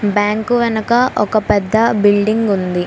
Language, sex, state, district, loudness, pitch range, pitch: Telugu, female, Telangana, Hyderabad, -14 LUFS, 205-225 Hz, 215 Hz